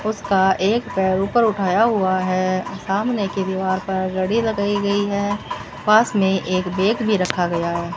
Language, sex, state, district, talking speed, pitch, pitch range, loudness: Hindi, female, Rajasthan, Bikaner, 175 wpm, 195 Hz, 185-210 Hz, -20 LUFS